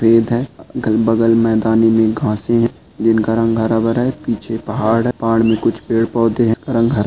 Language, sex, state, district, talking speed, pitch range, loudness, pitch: Hindi, male, Chhattisgarh, Korba, 160 wpm, 110-115 Hz, -16 LUFS, 115 Hz